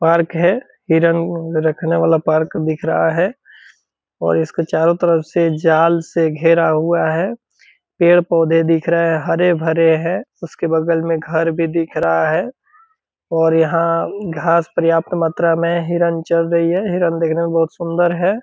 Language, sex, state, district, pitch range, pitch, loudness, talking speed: Hindi, male, Bihar, Purnia, 165-170 Hz, 165 Hz, -16 LUFS, 160 wpm